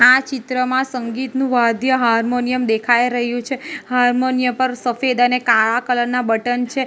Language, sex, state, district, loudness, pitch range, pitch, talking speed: Gujarati, female, Gujarat, Valsad, -17 LUFS, 240-260 Hz, 250 Hz, 150 wpm